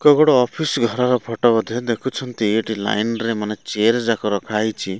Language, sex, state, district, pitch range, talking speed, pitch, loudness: Odia, male, Odisha, Malkangiri, 105-125 Hz, 180 wpm, 115 Hz, -19 LUFS